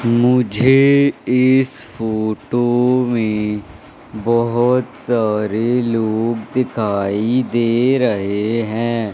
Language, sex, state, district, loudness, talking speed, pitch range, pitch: Hindi, male, Madhya Pradesh, Katni, -17 LUFS, 70 wpm, 110-125 Hz, 115 Hz